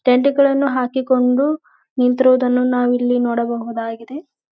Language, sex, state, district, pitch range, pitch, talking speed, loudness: Kannada, female, Karnataka, Gulbarga, 245-275 Hz, 250 Hz, 90 wpm, -17 LUFS